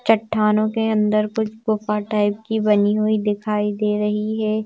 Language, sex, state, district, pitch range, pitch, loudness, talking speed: Hindi, female, Madhya Pradesh, Bhopal, 210-220 Hz, 215 Hz, -20 LUFS, 165 wpm